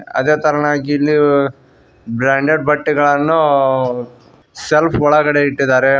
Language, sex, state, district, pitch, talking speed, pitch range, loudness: Kannada, male, Karnataka, Koppal, 145 Hz, 80 wpm, 130-150 Hz, -14 LUFS